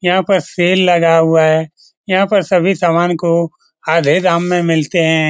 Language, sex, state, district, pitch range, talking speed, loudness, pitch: Hindi, male, Bihar, Lakhisarai, 165-185 Hz, 180 wpm, -13 LUFS, 170 Hz